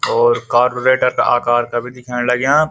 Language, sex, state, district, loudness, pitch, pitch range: Garhwali, male, Uttarakhand, Uttarkashi, -15 LUFS, 125 Hz, 120-135 Hz